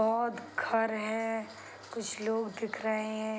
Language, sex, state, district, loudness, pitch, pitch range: Hindi, female, Bihar, East Champaran, -33 LUFS, 220 Hz, 220-225 Hz